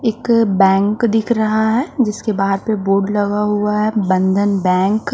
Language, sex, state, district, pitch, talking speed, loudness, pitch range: Hindi, female, Haryana, Rohtak, 210 Hz, 175 wpm, -16 LUFS, 195-220 Hz